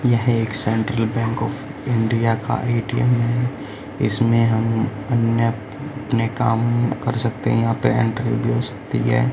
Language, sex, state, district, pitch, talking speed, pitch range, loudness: Hindi, male, Haryana, Rohtak, 115 Hz, 155 wpm, 115-120 Hz, -20 LUFS